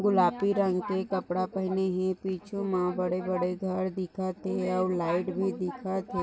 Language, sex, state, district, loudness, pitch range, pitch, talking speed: Hindi, female, Maharashtra, Nagpur, -30 LUFS, 180-190 Hz, 185 Hz, 165 wpm